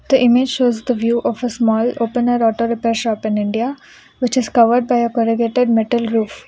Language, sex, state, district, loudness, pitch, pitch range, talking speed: English, female, Karnataka, Bangalore, -17 LUFS, 235 Hz, 230-245 Hz, 195 wpm